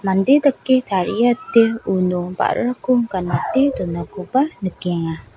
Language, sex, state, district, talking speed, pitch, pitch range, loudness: Garo, female, Meghalaya, South Garo Hills, 90 wpm, 195 Hz, 180-255 Hz, -18 LUFS